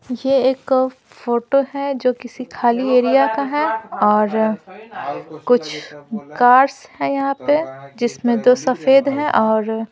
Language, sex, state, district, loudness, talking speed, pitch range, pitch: Hindi, female, Bihar, Patna, -17 LUFS, 135 wpm, 220-270 Hz, 250 Hz